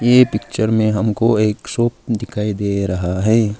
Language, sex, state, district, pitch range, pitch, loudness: Hindi, male, Arunachal Pradesh, Lower Dibang Valley, 105-115 Hz, 110 Hz, -17 LUFS